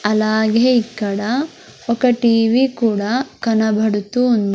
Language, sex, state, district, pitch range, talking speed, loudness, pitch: Telugu, female, Andhra Pradesh, Sri Satya Sai, 215-245 Hz, 90 wpm, -17 LUFS, 230 Hz